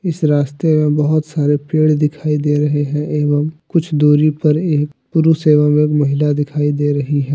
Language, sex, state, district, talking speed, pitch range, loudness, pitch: Hindi, male, Jharkhand, Deoghar, 190 wpm, 145-155 Hz, -15 LUFS, 150 Hz